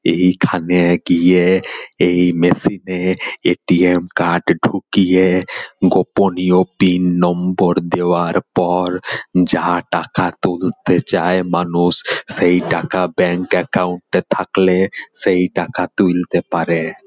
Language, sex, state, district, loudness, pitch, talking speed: Bengali, male, West Bengal, Purulia, -15 LUFS, 90 Hz, 100 wpm